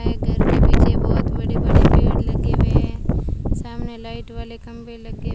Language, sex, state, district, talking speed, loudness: Hindi, female, Rajasthan, Bikaner, 180 wpm, -19 LUFS